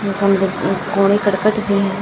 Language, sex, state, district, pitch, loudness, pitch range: Hindi, female, Chhattisgarh, Balrampur, 200 Hz, -17 LUFS, 195-205 Hz